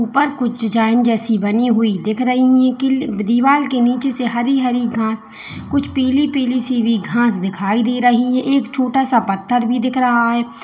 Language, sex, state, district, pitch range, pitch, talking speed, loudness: Hindi, female, Uttar Pradesh, Lalitpur, 230-255 Hz, 245 Hz, 195 wpm, -16 LUFS